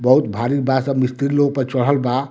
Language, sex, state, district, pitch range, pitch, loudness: Bhojpuri, male, Bihar, Muzaffarpur, 130-140 Hz, 135 Hz, -18 LUFS